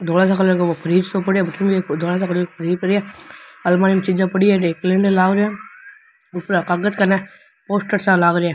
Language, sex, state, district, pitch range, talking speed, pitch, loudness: Rajasthani, male, Rajasthan, Nagaur, 175-200 Hz, 100 wpm, 190 Hz, -18 LUFS